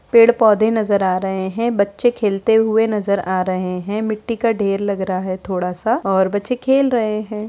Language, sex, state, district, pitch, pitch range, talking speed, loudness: Hindi, female, Bihar, Begusarai, 210 Hz, 190-225 Hz, 200 wpm, -18 LUFS